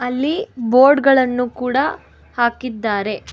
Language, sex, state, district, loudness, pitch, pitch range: Kannada, female, Karnataka, Bangalore, -17 LUFS, 250 Hz, 240-270 Hz